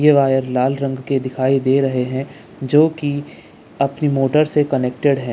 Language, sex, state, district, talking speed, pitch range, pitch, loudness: Hindi, male, Bihar, Jamui, 180 wpm, 130-145 Hz, 135 Hz, -18 LUFS